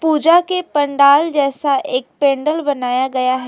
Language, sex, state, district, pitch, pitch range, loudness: Hindi, female, West Bengal, Alipurduar, 285 Hz, 260-310 Hz, -15 LUFS